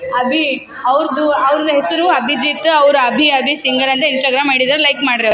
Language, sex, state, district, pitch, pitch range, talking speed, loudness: Kannada, female, Karnataka, Raichur, 275 Hz, 265-295 Hz, 190 wpm, -12 LUFS